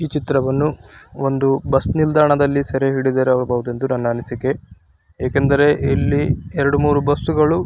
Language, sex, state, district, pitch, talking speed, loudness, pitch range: Kannada, male, Karnataka, Raichur, 135 Hz, 125 wpm, -18 LUFS, 130-145 Hz